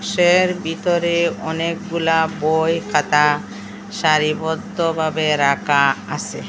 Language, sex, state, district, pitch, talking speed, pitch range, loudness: Bengali, female, Assam, Hailakandi, 160 Hz, 75 wpm, 150-170 Hz, -18 LUFS